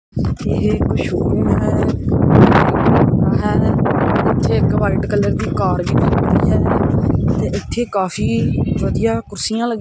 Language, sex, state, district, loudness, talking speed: Punjabi, male, Punjab, Kapurthala, -16 LUFS, 120 wpm